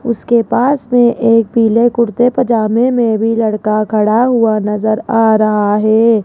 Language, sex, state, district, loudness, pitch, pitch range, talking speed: Hindi, female, Rajasthan, Jaipur, -12 LUFS, 230 Hz, 215-235 Hz, 155 wpm